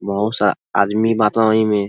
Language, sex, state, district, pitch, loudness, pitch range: Bhojpuri, male, Uttar Pradesh, Ghazipur, 105 Hz, -17 LUFS, 100-110 Hz